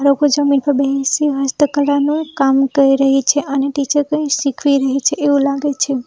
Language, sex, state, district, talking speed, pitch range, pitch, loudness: Gujarati, female, Gujarat, Valsad, 180 wpm, 275-290 Hz, 280 Hz, -15 LUFS